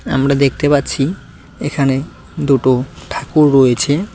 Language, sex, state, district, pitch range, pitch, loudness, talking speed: Bengali, male, West Bengal, Cooch Behar, 135-145 Hz, 140 Hz, -15 LUFS, 100 wpm